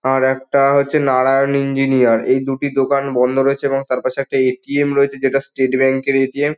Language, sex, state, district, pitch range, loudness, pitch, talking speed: Bengali, male, West Bengal, Dakshin Dinajpur, 130-140 Hz, -16 LUFS, 135 Hz, 210 wpm